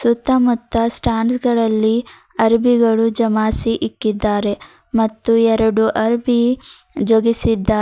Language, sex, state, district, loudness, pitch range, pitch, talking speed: Kannada, female, Karnataka, Bidar, -16 LUFS, 220-235 Hz, 225 Hz, 75 wpm